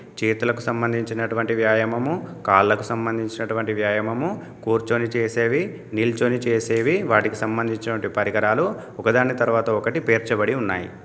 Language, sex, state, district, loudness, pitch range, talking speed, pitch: Telugu, male, Telangana, Komaram Bheem, -22 LUFS, 110-115 Hz, 100 wpm, 115 Hz